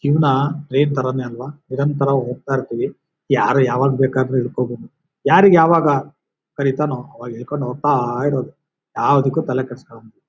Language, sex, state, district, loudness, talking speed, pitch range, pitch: Kannada, male, Karnataka, Bijapur, -18 LUFS, 130 wpm, 125-145 Hz, 135 Hz